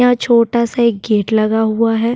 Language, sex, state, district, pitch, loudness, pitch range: Hindi, female, Maharashtra, Chandrapur, 230 Hz, -14 LUFS, 220-235 Hz